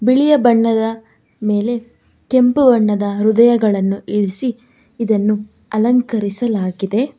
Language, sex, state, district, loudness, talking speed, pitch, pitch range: Kannada, female, Karnataka, Bangalore, -16 LUFS, 75 wpm, 225 Hz, 210-240 Hz